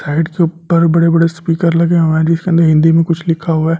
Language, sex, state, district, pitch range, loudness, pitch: Hindi, male, Delhi, New Delhi, 160-170 Hz, -12 LUFS, 165 Hz